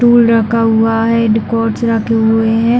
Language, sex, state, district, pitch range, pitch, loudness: Hindi, female, Chhattisgarh, Bilaspur, 225-230 Hz, 225 Hz, -12 LUFS